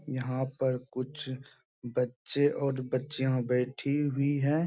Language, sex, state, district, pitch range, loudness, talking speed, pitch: Hindi, male, Bihar, Bhagalpur, 130-140 Hz, -31 LUFS, 130 wpm, 130 Hz